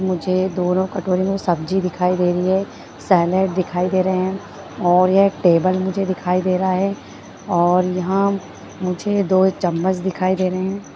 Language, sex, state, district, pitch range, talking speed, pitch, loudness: Hindi, female, Bihar, Bhagalpur, 180-190 Hz, 170 wpm, 185 Hz, -19 LUFS